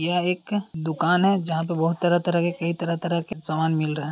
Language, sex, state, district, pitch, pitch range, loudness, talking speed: Hindi, male, Uttar Pradesh, Deoria, 170 Hz, 160-175 Hz, -24 LUFS, 265 wpm